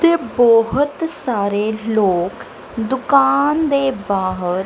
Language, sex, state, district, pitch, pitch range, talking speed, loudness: Punjabi, female, Punjab, Kapurthala, 240 Hz, 205-280 Hz, 90 wpm, -17 LUFS